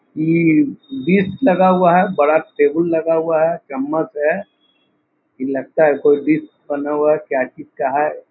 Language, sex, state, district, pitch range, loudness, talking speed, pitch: Hindi, male, Bihar, Muzaffarpur, 150-185 Hz, -17 LUFS, 175 wpm, 160 Hz